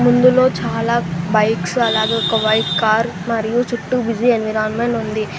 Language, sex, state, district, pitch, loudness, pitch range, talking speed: Telugu, female, Telangana, Mahabubabad, 225 Hz, -17 LUFS, 215-240 Hz, 135 wpm